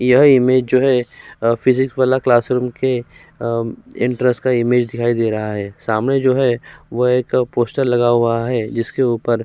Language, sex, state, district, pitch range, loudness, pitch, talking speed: Hindi, male, Uttar Pradesh, Jyotiba Phule Nagar, 115-130 Hz, -17 LUFS, 125 Hz, 185 wpm